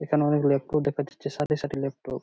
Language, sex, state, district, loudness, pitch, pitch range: Bengali, male, West Bengal, Purulia, -26 LUFS, 145 Hz, 140-150 Hz